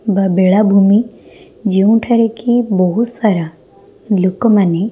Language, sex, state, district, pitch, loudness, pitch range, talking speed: Odia, female, Odisha, Khordha, 205 Hz, -13 LUFS, 190-225 Hz, 100 wpm